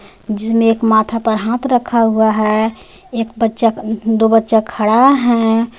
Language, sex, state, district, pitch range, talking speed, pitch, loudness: Hindi, female, Jharkhand, Garhwa, 220-230 Hz, 145 wpm, 225 Hz, -14 LUFS